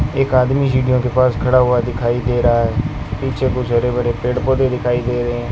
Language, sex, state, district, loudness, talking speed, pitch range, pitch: Hindi, male, Rajasthan, Bikaner, -17 LUFS, 230 wpm, 120-130 Hz, 125 Hz